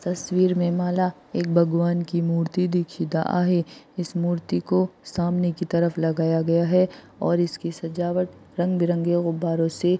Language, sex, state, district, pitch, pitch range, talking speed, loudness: Hindi, female, Maharashtra, Aurangabad, 175 Hz, 170-180 Hz, 150 wpm, -23 LUFS